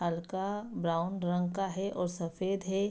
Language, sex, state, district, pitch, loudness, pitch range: Hindi, female, Bihar, Saharsa, 185 Hz, -34 LUFS, 175-195 Hz